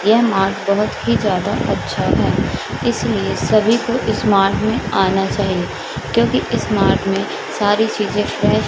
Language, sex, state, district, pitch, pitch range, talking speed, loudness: Hindi, female, Madhya Pradesh, Katni, 205 Hz, 195-220 Hz, 150 wpm, -17 LUFS